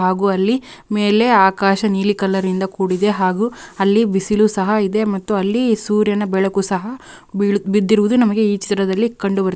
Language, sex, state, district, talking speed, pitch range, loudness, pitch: Kannada, female, Karnataka, Raichur, 125 wpm, 195-215 Hz, -17 LUFS, 205 Hz